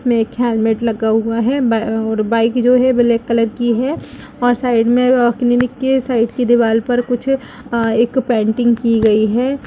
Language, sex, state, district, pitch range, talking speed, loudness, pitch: Hindi, female, Uttar Pradesh, Jalaun, 230-250 Hz, 205 wpm, -15 LUFS, 235 Hz